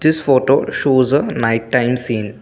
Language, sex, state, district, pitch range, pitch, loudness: English, male, Assam, Kamrup Metropolitan, 115-135 Hz, 125 Hz, -15 LUFS